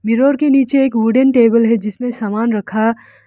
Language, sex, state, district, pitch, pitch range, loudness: Hindi, female, Arunachal Pradesh, Lower Dibang Valley, 230 Hz, 225-265 Hz, -14 LUFS